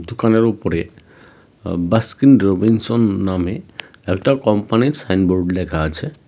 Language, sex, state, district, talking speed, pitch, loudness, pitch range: Bengali, male, Tripura, West Tripura, 115 wpm, 105 Hz, -17 LUFS, 90-115 Hz